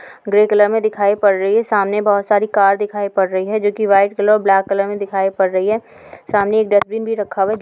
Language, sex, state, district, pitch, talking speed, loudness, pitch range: Hindi, female, Uttar Pradesh, Muzaffarnagar, 205 Hz, 265 wpm, -16 LUFS, 195-210 Hz